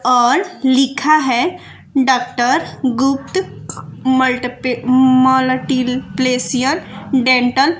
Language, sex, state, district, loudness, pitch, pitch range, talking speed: Hindi, female, Bihar, West Champaran, -15 LUFS, 260 Hz, 250-270 Hz, 75 wpm